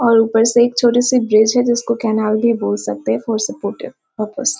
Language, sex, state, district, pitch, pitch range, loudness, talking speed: Hindi, female, Chhattisgarh, Korba, 230 Hz, 215-245 Hz, -16 LUFS, 220 wpm